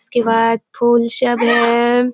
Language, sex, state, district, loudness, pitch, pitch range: Hindi, female, Bihar, Kishanganj, -14 LUFS, 235 Hz, 230-240 Hz